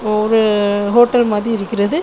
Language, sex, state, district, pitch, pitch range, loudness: Tamil, female, Tamil Nadu, Kanyakumari, 215 Hz, 205-230 Hz, -14 LUFS